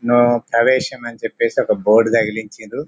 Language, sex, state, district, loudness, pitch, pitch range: Telugu, male, Telangana, Karimnagar, -16 LUFS, 120 Hz, 115-130 Hz